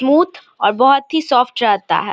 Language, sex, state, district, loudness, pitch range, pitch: Hindi, female, Bihar, Samastipur, -15 LUFS, 250-310 Hz, 275 Hz